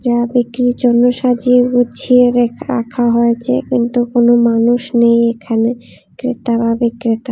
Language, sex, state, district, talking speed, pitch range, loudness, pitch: Bengali, female, Tripura, West Tripura, 130 wpm, 235-245 Hz, -13 LUFS, 240 Hz